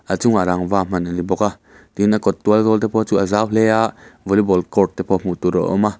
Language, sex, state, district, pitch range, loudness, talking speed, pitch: Mizo, male, Mizoram, Aizawl, 90-110 Hz, -18 LUFS, 280 wpm, 100 Hz